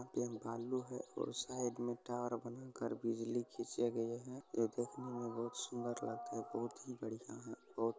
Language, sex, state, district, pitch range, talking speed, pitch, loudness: Maithili, male, Bihar, Supaul, 115-125 Hz, 190 wpm, 120 Hz, -43 LUFS